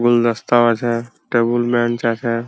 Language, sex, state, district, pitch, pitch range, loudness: Bengali, male, West Bengal, Purulia, 120 Hz, 115-120 Hz, -17 LUFS